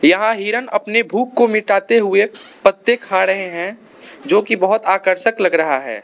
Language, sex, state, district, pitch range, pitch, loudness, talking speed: Hindi, male, Arunachal Pradesh, Lower Dibang Valley, 195-230 Hz, 210 Hz, -16 LUFS, 180 wpm